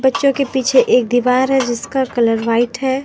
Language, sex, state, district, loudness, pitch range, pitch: Hindi, female, Jharkhand, Deoghar, -15 LUFS, 240-265 Hz, 255 Hz